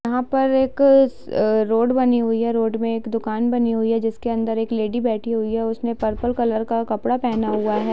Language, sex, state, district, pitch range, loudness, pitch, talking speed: Hindi, female, Bihar, Sitamarhi, 225-245 Hz, -20 LUFS, 230 Hz, 235 wpm